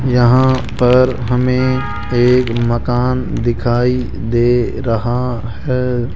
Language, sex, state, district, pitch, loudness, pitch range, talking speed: Hindi, male, Rajasthan, Jaipur, 125 Hz, -15 LUFS, 120-125 Hz, 90 wpm